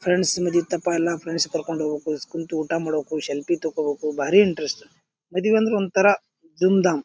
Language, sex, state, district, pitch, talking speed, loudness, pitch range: Kannada, male, Karnataka, Bijapur, 165 Hz, 170 wpm, -22 LUFS, 155-185 Hz